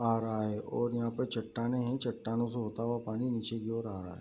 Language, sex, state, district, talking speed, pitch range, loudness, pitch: Hindi, male, Bihar, Bhagalpur, 270 wpm, 110-120 Hz, -35 LUFS, 115 Hz